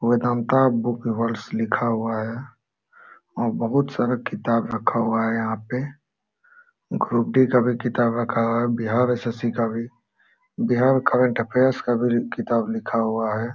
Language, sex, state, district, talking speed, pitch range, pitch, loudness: Hindi, male, Jharkhand, Sahebganj, 155 wpm, 115-125 Hz, 120 Hz, -22 LUFS